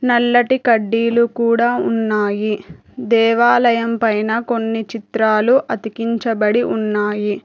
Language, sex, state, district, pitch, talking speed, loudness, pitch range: Telugu, female, Telangana, Hyderabad, 230 Hz, 80 wpm, -16 LUFS, 215-235 Hz